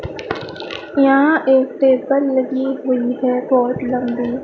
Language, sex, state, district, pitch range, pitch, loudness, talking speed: Hindi, female, Madhya Pradesh, Dhar, 250-275 Hz, 260 Hz, -17 LUFS, 110 wpm